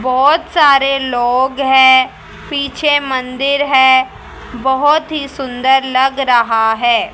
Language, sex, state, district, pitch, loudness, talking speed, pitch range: Hindi, female, Haryana, Charkhi Dadri, 265 Hz, -12 LUFS, 110 wpm, 255-285 Hz